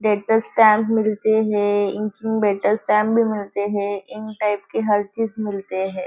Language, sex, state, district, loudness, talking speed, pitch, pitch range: Hindi, female, Maharashtra, Nagpur, -20 LUFS, 120 wpm, 210 Hz, 205-220 Hz